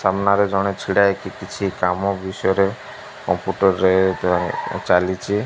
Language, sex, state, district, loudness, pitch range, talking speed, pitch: Odia, male, Odisha, Malkangiri, -19 LUFS, 95-100 Hz, 120 wpm, 95 Hz